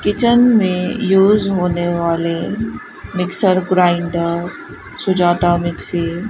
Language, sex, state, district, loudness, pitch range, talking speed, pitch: Hindi, female, Rajasthan, Bikaner, -16 LUFS, 170-195 Hz, 95 wpm, 180 Hz